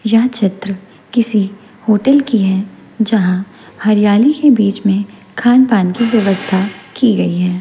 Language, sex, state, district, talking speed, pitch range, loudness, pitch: Hindi, female, Chhattisgarh, Raipur, 135 wpm, 195-230 Hz, -13 LUFS, 210 Hz